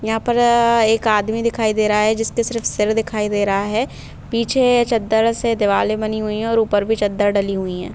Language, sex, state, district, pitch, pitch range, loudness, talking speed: Bhojpuri, female, Bihar, Saran, 220 Hz, 210-230 Hz, -18 LUFS, 210 wpm